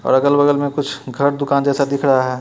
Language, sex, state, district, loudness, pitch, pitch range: Hindi, male, Bihar, Muzaffarpur, -17 LUFS, 140 Hz, 140-145 Hz